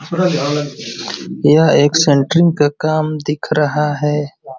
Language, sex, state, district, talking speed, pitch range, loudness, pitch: Hindi, male, Uttar Pradesh, Ghazipur, 105 wpm, 145-155 Hz, -15 LUFS, 150 Hz